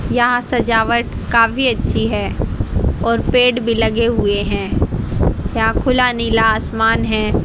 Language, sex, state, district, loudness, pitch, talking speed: Hindi, female, Haryana, Rohtak, -16 LUFS, 225 Hz, 130 wpm